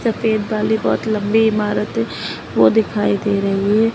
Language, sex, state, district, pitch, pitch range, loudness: Hindi, female, Uttar Pradesh, Lalitpur, 215 Hz, 205-220 Hz, -17 LUFS